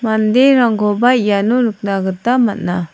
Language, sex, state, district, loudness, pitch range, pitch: Garo, female, Meghalaya, South Garo Hills, -14 LUFS, 200-245 Hz, 220 Hz